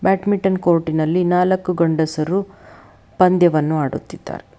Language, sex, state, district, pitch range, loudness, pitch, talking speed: Kannada, female, Karnataka, Bangalore, 155-185 Hz, -18 LUFS, 175 Hz, 90 wpm